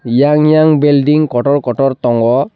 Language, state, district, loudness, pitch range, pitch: Kokborok, Tripura, Dhalai, -11 LUFS, 125-150 Hz, 140 Hz